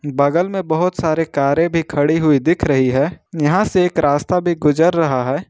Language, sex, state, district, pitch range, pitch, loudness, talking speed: Hindi, male, Jharkhand, Ranchi, 145-175 Hz, 160 Hz, -16 LUFS, 205 wpm